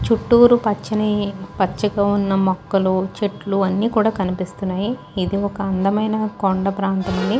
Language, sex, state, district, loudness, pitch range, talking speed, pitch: Telugu, female, Andhra Pradesh, Guntur, -19 LUFS, 190-215 Hz, 130 wpm, 200 Hz